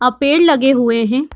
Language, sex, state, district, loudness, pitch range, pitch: Hindi, female, Bihar, Darbhanga, -13 LUFS, 245-290 Hz, 270 Hz